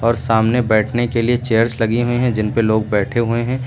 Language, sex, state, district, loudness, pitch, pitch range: Hindi, male, Uttar Pradesh, Lucknow, -17 LUFS, 115 Hz, 110-120 Hz